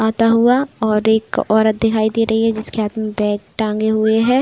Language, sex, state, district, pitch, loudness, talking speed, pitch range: Hindi, female, Uttar Pradesh, Budaun, 220 Hz, -16 LUFS, 215 wpm, 215-225 Hz